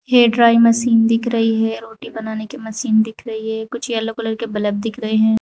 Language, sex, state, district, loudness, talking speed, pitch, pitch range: Hindi, female, Uttar Pradesh, Saharanpur, -17 LUFS, 220 wpm, 225 Hz, 220-230 Hz